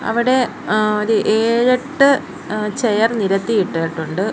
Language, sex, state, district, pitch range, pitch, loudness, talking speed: Malayalam, female, Kerala, Kollam, 205-240 Hz, 220 Hz, -17 LUFS, 110 wpm